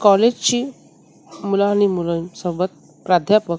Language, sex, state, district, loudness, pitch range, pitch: Marathi, female, Maharashtra, Mumbai Suburban, -19 LUFS, 175-205 Hz, 195 Hz